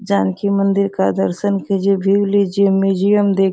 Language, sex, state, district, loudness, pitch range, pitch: Hindi, female, Bihar, Sitamarhi, -16 LUFS, 195-200 Hz, 195 Hz